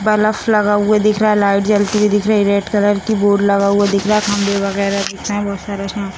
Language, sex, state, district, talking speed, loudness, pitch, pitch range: Hindi, female, Bihar, Sitamarhi, 290 wpm, -15 LUFS, 205 Hz, 200-210 Hz